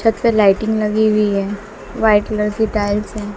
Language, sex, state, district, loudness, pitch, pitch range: Hindi, female, Bihar, West Champaran, -16 LUFS, 210 Hz, 205-220 Hz